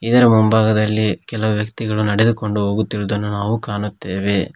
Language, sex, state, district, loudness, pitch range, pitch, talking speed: Kannada, male, Karnataka, Koppal, -18 LUFS, 105-110 Hz, 105 Hz, 105 wpm